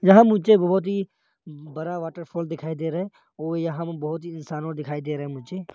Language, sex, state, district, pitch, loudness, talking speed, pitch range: Hindi, male, Arunachal Pradesh, Longding, 165 Hz, -24 LUFS, 230 wpm, 155-185 Hz